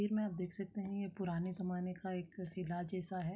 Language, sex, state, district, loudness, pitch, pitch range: Kumaoni, female, Uttarakhand, Uttarkashi, -41 LUFS, 185 Hz, 180-195 Hz